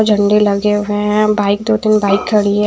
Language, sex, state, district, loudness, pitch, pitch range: Hindi, female, Haryana, Charkhi Dadri, -13 LUFS, 210 Hz, 205-210 Hz